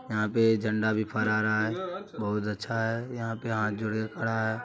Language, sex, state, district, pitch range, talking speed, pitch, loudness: Maithili, male, Bihar, Supaul, 110-115 Hz, 220 wpm, 110 Hz, -29 LUFS